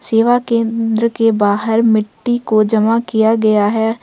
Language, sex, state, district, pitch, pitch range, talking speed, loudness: Hindi, female, Jharkhand, Ranchi, 225 Hz, 220-230 Hz, 150 wpm, -14 LUFS